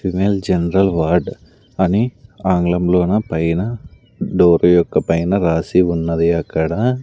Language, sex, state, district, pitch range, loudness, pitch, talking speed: Telugu, male, Andhra Pradesh, Sri Satya Sai, 85-100 Hz, -16 LUFS, 90 Hz, 105 wpm